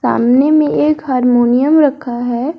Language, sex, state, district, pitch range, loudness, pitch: Hindi, female, Jharkhand, Garhwa, 245-300 Hz, -12 LUFS, 265 Hz